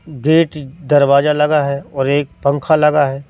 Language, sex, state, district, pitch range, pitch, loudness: Hindi, male, Madhya Pradesh, Katni, 140-150 Hz, 145 Hz, -14 LUFS